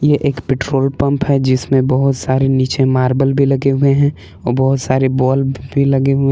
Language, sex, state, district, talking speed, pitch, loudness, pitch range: Hindi, male, Jharkhand, Palamu, 200 wpm, 135 Hz, -15 LUFS, 130-140 Hz